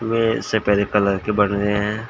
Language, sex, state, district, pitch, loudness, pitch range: Hindi, male, Uttar Pradesh, Shamli, 105 Hz, -19 LUFS, 100-110 Hz